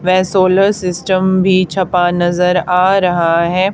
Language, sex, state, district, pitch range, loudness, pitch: Hindi, female, Haryana, Charkhi Dadri, 180-190 Hz, -13 LUFS, 185 Hz